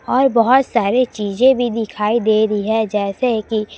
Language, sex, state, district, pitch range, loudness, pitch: Hindi, female, Chhattisgarh, Raipur, 215-250 Hz, -16 LUFS, 225 Hz